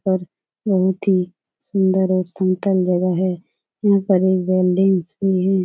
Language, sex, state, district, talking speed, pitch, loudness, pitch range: Hindi, female, Bihar, Jahanabad, 140 wpm, 185 Hz, -19 LUFS, 185-195 Hz